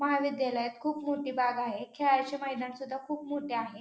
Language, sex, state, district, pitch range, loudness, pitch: Marathi, female, Maharashtra, Pune, 250-285 Hz, -32 LUFS, 270 Hz